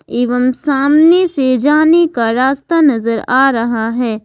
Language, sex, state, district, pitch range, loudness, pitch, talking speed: Hindi, female, Jharkhand, Ranchi, 235-300 Hz, -12 LUFS, 260 Hz, 140 wpm